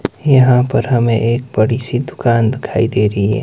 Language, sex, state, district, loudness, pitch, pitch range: Hindi, male, Himachal Pradesh, Shimla, -14 LUFS, 120 Hz, 110-125 Hz